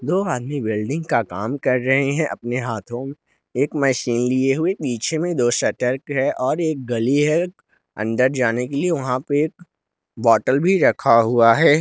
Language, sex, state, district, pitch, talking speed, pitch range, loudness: Hindi, male, Jharkhand, Garhwa, 130 Hz, 175 wpm, 120-150 Hz, -20 LUFS